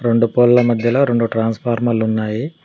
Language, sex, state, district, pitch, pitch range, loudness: Telugu, male, Telangana, Mahabubabad, 120 Hz, 115-120 Hz, -16 LUFS